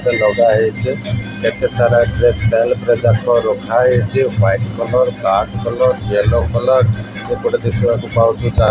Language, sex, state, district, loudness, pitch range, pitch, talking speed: Odia, male, Odisha, Malkangiri, -15 LUFS, 110-120 Hz, 115 Hz, 145 wpm